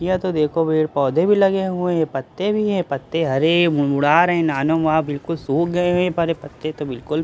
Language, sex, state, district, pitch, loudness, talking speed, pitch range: Hindi, male, Bihar, Katihar, 160 Hz, -19 LUFS, 225 wpm, 145-175 Hz